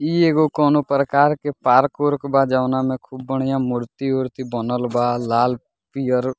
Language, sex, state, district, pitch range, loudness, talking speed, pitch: Bhojpuri, male, Bihar, Muzaffarpur, 125-145 Hz, -19 LUFS, 160 wpm, 130 Hz